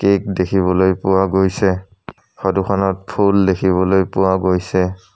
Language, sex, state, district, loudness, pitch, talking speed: Assamese, male, Assam, Sonitpur, -16 LUFS, 95 Hz, 105 wpm